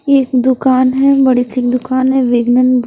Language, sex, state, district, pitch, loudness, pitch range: Hindi, female, Chhattisgarh, Raipur, 255 Hz, -12 LUFS, 250-265 Hz